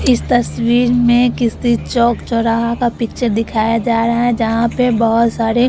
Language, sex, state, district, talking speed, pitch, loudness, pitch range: Hindi, female, Bihar, Vaishali, 160 wpm, 235 Hz, -15 LUFS, 230-240 Hz